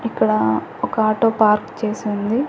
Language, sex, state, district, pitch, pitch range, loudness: Telugu, female, Andhra Pradesh, Annamaya, 215 Hz, 205-225 Hz, -19 LUFS